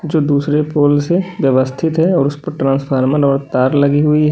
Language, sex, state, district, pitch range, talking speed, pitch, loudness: Hindi, male, Uttar Pradesh, Lalitpur, 135-160 Hz, 210 wpm, 145 Hz, -14 LUFS